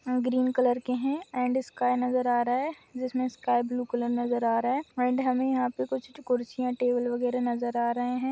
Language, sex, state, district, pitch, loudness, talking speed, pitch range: Hindi, female, Goa, North and South Goa, 250 Hz, -28 LUFS, 210 wpm, 240-255 Hz